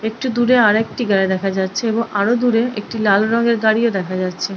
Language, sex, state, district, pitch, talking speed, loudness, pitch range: Bengali, female, West Bengal, Purulia, 220 Hz, 235 wpm, -17 LUFS, 195-235 Hz